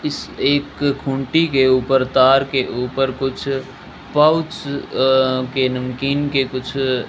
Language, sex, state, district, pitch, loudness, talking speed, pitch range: Hindi, male, Rajasthan, Bikaner, 135 Hz, -18 LUFS, 135 wpm, 130-140 Hz